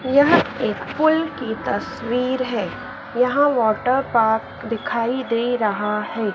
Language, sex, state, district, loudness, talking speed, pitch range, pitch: Hindi, female, Madhya Pradesh, Dhar, -20 LUFS, 115 wpm, 225-265 Hz, 245 Hz